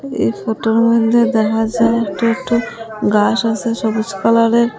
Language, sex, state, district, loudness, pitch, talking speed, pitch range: Bengali, female, Assam, Hailakandi, -15 LUFS, 230 Hz, 140 wpm, 220-230 Hz